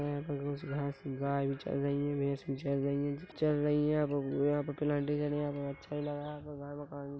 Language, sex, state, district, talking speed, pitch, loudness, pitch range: Hindi, male, Chhattisgarh, Korba, 200 wpm, 145 Hz, -35 LUFS, 140-145 Hz